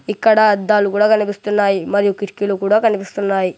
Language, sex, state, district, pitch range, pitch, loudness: Telugu, male, Telangana, Hyderabad, 200-210 Hz, 205 Hz, -16 LUFS